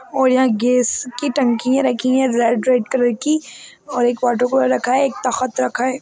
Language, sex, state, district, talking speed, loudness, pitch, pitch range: Hindi, female, Bihar, Saran, 190 wpm, -17 LUFS, 255 Hz, 245-265 Hz